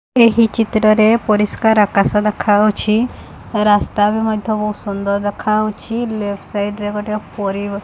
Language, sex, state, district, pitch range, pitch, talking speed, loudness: Odia, female, Odisha, Khordha, 205-220 Hz, 210 Hz, 130 wpm, -16 LUFS